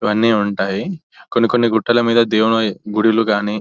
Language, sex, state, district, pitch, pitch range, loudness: Telugu, male, Telangana, Nalgonda, 110 Hz, 105-115 Hz, -16 LUFS